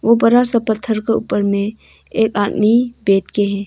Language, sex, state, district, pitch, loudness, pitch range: Hindi, female, Arunachal Pradesh, Longding, 220 Hz, -16 LUFS, 205-230 Hz